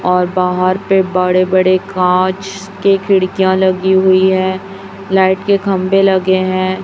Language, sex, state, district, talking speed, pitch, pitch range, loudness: Hindi, female, Chhattisgarh, Raipur, 140 wpm, 190 Hz, 185-195 Hz, -13 LUFS